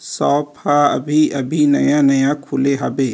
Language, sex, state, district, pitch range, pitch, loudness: Chhattisgarhi, male, Chhattisgarh, Rajnandgaon, 135-145 Hz, 145 Hz, -16 LUFS